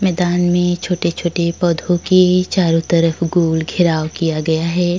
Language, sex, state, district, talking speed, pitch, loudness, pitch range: Hindi, female, Maharashtra, Chandrapur, 155 wpm, 175 Hz, -16 LUFS, 165-180 Hz